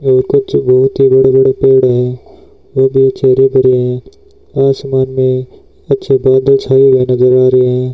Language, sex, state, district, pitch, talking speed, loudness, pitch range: Hindi, male, Rajasthan, Bikaner, 130 Hz, 175 wpm, -10 LUFS, 130-135 Hz